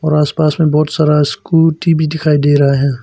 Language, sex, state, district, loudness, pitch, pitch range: Hindi, male, Arunachal Pradesh, Papum Pare, -12 LUFS, 155 Hz, 145-160 Hz